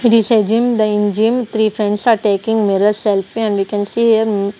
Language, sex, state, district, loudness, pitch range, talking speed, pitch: English, female, Punjab, Kapurthala, -15 LUFS, 205-225 Hz, 235 wpm, 215 Hz